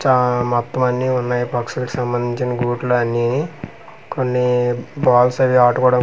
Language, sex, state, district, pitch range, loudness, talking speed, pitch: Telugu, male, Andhra Pradesh, Manyam, 120-130 Hz, -18 LUFS, 110 wpm, 125 Hz